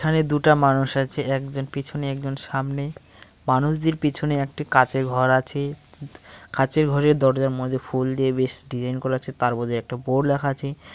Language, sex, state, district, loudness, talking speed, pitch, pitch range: Bengali, male, West Bengal, Paschim Medinipur, -23 LUFS, 165 wpm, 135 Hz, 130-145 Hz